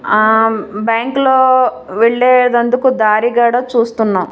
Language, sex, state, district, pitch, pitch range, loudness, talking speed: Telugu, female, Andhra Pradesh, Manyam, 235 Hz, 220-250 Hz, -12 LUFS, 85 wpm